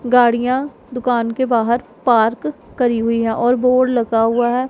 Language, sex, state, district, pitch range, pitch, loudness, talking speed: Hindi, female, Punjab, Pathankot, 230-250 Hz, 240 Hz, -17 LUFS, 165 wpm